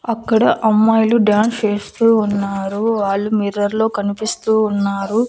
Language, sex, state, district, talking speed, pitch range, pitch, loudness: Telugu, female, Andhra Pradesh, Annamaya, 115 wpm, 205-225 Hz, 215 Hz, -16 LUFS